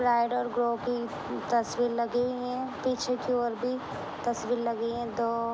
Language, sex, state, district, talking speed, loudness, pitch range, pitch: Hindi, female, Jharkhand, Jamtara, 130 wpm, -30 LUFS, 235-250 Hz, 240 Hz